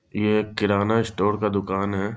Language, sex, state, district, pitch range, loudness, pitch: Hindi, male, Bihar, East Champaran, 100-105 Hz, -23 LUFS, 105 Hz